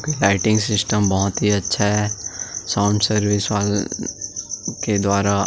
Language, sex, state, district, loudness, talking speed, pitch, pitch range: Hindi, male, Chhattisgarh, Sukma, -20 LUFS, 120 wpm, 105 Hz, 100-105 Hz